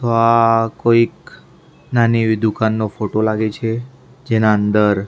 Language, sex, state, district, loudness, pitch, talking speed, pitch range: Gujarati, male, Maharashtra, Mumbai Suburban, -16 LUFS, 115 Hz, 120 wpm, 110-115 Hz